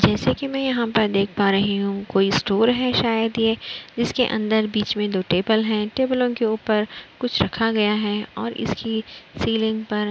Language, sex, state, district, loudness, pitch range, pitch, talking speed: Hindi, female, Uttar Pradesh, Budaun, -22 LUFS, 210-230 Hz, 220 Hz, 195 wpm